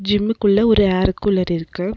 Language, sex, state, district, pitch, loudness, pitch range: Tamil, female, Tamil Nadu, Nilgiris, 200 Hz, -17 LUFS, 185-210 Hz